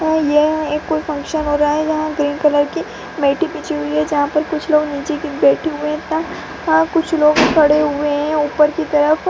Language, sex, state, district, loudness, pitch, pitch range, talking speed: Hindi, female, Bihar, Purnia, -16 LUFS, 305 Hz, 295-315 Hz, 225 wpm